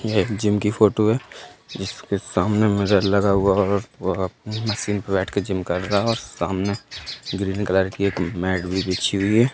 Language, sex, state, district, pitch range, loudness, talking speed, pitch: Hindi, male, Uttar Pradesh, Jalaun, 95-105 Hz, -22 LUFS, 165 wpm, 100 Hz